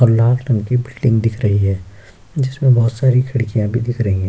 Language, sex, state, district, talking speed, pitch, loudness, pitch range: Hindi, male, Bihar, Kishanganj, 225 wpm, 115 Hz, -16 LUFS, 105-125 Hz